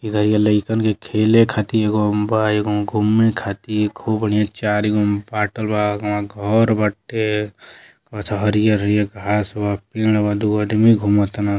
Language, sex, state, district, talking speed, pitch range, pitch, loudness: Bhojpuri, male, Uttar Pradesh, Deoria, 160 wpm, 105-110 Hz, 105 Hz, -18 LUFS